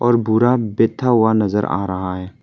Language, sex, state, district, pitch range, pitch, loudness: Hindi, male, Arunachal Pradesh, Papum Pare, 100-120 Hz, 110 Hz, -17 LUFS